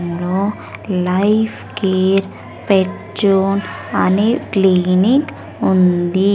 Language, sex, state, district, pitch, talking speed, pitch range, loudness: Telugu, female, Andhra Pradesh, Sri Satya Sai, 195 Hz, 75 wpm, 185-205 Hz, -16 LUFS